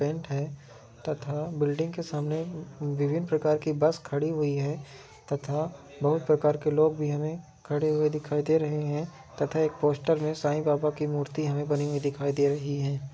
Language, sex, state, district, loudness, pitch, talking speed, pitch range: Hindi, male, Chhattisgarh, Raigarh, -28 LUFS, 150 Hz, 185 wpm, 145-155 Hz